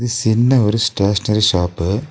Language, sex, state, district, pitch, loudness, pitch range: Tamil, male, Tamil Nadu, Nilgiris, 105 Hz, -16 LUFS, 100-115 Hz